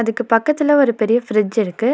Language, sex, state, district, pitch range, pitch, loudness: Tamil, female, Tamil Nadu, Nilgiris, 220-255 Hz, 230 Hz, -16 LUFS